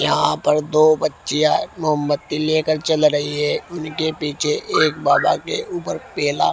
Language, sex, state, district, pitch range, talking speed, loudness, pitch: Hindi, male, Haryana, Rohtak, 150-155 Hz, 145 wpm, -19 LUFS, 155 Hz